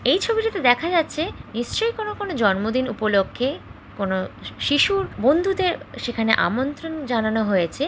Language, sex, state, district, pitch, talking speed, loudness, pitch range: Bengali, female, West Bengal, Jhargram, 275 Hz, 120 wpm, -22 LUFS, 220-355 Hz